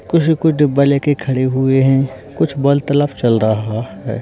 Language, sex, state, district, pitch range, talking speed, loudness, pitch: Hindi, male, Uttarakhand, Uttarkashi, 130-145 Hz, 170 wpm, -15 LUFS, 135 Hz